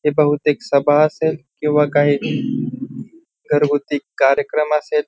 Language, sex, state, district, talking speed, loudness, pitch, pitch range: Marathi, male, Maharashtra, Pune, 105 wpm, -17 LUFS, 150 Hz, 145-150 Hz